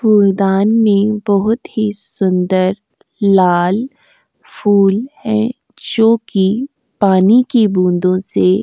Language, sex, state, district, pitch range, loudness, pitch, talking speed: Hindi, female, Uttar Pradesh, Jyotiba Phule Nagar, 190-225 Hz, -14 LUFS, 205 Hz, 95 wpm